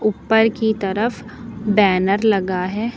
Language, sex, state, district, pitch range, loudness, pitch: Hindi, female, Uttar Pradesh, Lucknow, 195-220 Hz, -18 LUFS, 215 Hz